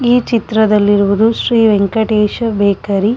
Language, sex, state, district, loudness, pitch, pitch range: Kannada, female, Karnataka, Chamarajanagar, -12 LUFS, 215 Hz, 205-225 Hz